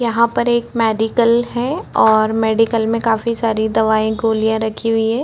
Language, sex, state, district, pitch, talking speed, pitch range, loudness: Hindi, female, Chhattisgarh, Korba, 225 Hz, 170 wpm, 220-235 Hz, -16 LUFS